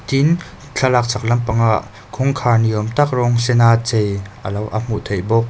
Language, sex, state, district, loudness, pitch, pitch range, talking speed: Mizo, male, Mizoram, Aizawl, -17 LUFS, 115 Hz, 110-125 Hz, 165 wpm